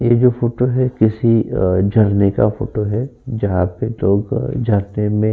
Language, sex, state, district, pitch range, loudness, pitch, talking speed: Hindi, male, Uttar Pradesh, Jyotiba Phule Nagar, 100-120 Hz, -17 LUFS, 110 Hz, 180 wpm